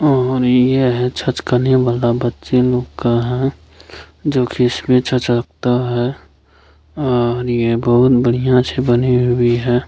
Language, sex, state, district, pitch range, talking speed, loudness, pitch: Hindi, male, Bihar, Kishanganj, 120-125 Hz, 140 wpm, -16 LUFS, 125 Hz